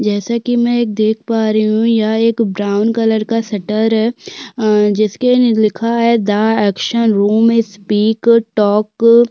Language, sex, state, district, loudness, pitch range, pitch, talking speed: Hindi, female, Chhattisgarh, Korba, -14 LUFS, 215-230 Hz, 220 Hz, 180 wpm